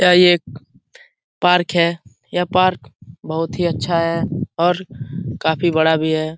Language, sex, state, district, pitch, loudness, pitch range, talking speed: Hindi, male, Bihar, Jahanabad, 170 Hz, -18 LUFS, 160-180 Hz, 140 wpm